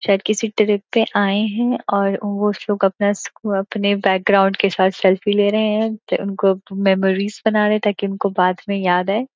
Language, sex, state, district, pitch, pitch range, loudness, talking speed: Hindi, female, Uttar Pradesh, Gorakhpur, 200 Hz, 195-210 Hz, -18 LUFS, 190 wpm